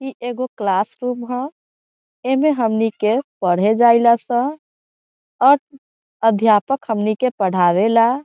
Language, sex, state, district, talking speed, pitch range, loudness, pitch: Bhojpuri, female, Bihar, Saran, 130 wpm, 215-260 Hz, -17 LUFS, 235 Hz